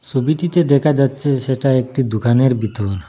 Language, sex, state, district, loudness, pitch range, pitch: Bengali, male, Assam, Hailakandi, -16 LUFS, 120-140 Hz, 130 Hz